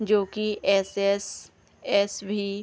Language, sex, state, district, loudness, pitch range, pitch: Hindi, female, Bihar, East Champaran, -25 LUFS, 200-205 Hz, 200 Hz